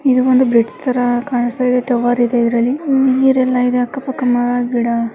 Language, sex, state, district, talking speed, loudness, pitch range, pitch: Kannada, female, Karnataka, Mysore, 185 wpm, -15 LUFS, 240-255 Hz, 250 Hz